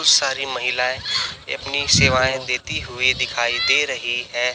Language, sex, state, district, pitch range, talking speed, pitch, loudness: Hindi, male, Chhattisgarh, Raipur, 120-130 Hz, 160 wpm, 125 Hz, -19 LUFS